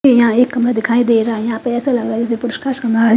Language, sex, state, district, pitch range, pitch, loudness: Hindi, female, Haryana, Charkhi Dadri, 230-245 Hz, 235 Hz, -15 LUFS